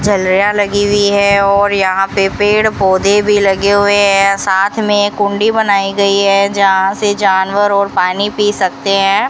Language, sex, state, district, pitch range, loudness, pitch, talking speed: Hindi, female, Rajasthan, Bikaner, 195-205 Hz, -11 LUFS, 200 Hz, 175 wpm